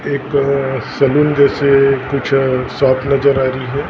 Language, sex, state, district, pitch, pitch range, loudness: Hindi, male, Maharashtra, Gondia, 140 Hz, 130-140 Hz, -14 LUFS